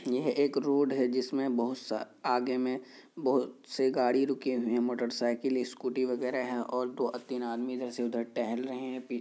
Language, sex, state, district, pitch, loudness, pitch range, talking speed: Hindi, male, Bihar, Kishanganj, 125 Hz, -32 LUFS, 120-130 Hz, 210 wpm